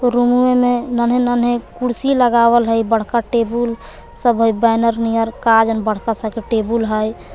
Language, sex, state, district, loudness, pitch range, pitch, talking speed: Magahi, female, Jharkhand, Palamu, -16 LUFS, 225-240 Hz, 230 Hz, 165 wpm